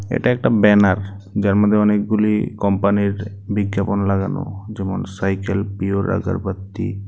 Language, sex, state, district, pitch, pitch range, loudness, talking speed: Bengali, male, Tripura, West Tripura, 100 Hz, 100-105 Hz, -19 LUFS, 120 wpm